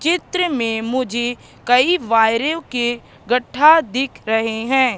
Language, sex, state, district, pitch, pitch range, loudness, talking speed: Hindi, female, Madhya Pradesh, Katni, 245 Hz, 230-290 Hz, -17 LUFS, 120 wpm